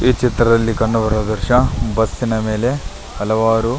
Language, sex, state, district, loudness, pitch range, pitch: Kannada, male, Karnataka, Belgaum, -17 LUFS, 110-120 Hz, 115 Hz